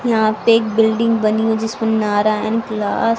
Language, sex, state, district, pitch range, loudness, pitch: Hindi, female, Haryana, Rohtak, 215-225 Hz, -16 LUFS, 220 Hz